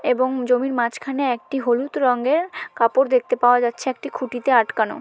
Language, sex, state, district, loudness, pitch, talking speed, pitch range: Bengali, female, West Bengal, Malda, -20 LUFS, 255 Hz, 155 wpm, 245-275 Hz